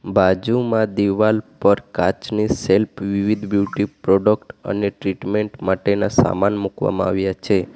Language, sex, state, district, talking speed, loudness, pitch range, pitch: Gujarati, male, Gujarat, Valsad, 115 wpm, -19 LUFS, 95-105 Hz, 100 Hz